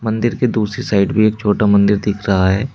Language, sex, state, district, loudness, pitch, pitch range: Hindi, male, Uttar Pradesh, Shamli, -15 LUFS, 105 Hz, 100-110 Hz